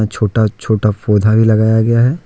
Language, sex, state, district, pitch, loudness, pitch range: Hindi, male, Jharkhand, Ranchi, 110 Hz, -13 LUFS, 105-115 Hz